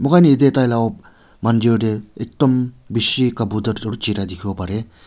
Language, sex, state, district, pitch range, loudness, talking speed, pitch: Nagamese, male, Nagaland, Kohima, 105-125 Hz, -18 LUFS, 140 wpm, 115 Hz